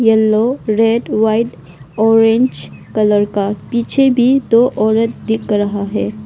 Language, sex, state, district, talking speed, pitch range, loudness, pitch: Hindi, female, Arunachal Pradesh, Longding, 125 wpm, 205-235 Hz, -14 LUFS, 220 Hz